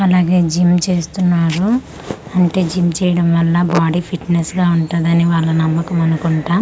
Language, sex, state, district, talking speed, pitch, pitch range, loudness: Telugu, female, Andhra Pradesh, Manyam, 125 wpm, 175 Hz, 165-180 Hz, -15 LUFS